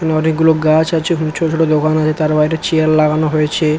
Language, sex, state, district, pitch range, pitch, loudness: Bengali, male, West Bengal, Kolkata, 155-160 Hz, 155 Hz, -14 LUFS